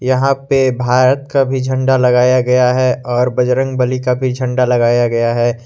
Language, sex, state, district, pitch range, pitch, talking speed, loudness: Hindi, male, Jharkhand, Garhwa, 125-130 Hz, 125 Hz, 180 wpm, -14 LUFS